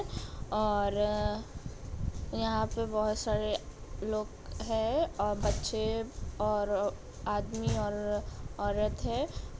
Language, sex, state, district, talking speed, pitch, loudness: Hindi, female, Bihar, Gopalganj, 100 wpm, 210 Hz, -33 LUFS